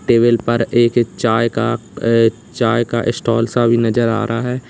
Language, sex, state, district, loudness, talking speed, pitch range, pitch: Hindi, male, Uttar Pradesh, Lalitpur, -16 LUFS, 190 wpm, 115-120 Hz, 115 Hz